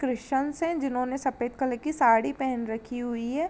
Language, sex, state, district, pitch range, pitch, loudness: Hindi, female, Uttar Pradesh, Jalaun, 240-275 Hz, 255 Hz, -28 LUFS